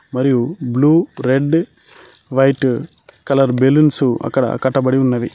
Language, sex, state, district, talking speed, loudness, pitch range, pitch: Telugu, male, Telangana, Mahabubabad, 100 wpm, -16 LUFS, 130-145 Hz, 135 Hz